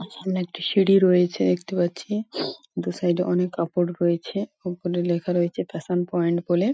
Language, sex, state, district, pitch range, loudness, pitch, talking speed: Bengali, female, West Bengal, Paschim Medinipur, 175-185 Hz, -24 LUFS, 175 Hz, 160 wpm